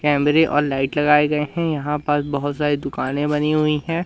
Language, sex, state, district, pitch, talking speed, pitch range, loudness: Hindi, male, Madhya Pradesh, Umaria, 150 Hz, 205 wpm, 145-150 Hz, -19 LUFS